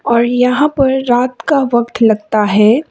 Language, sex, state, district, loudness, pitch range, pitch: Hindi, female, Sikkim, Gangtok, -12 LUFS, 225-265 Hz, 245 Hz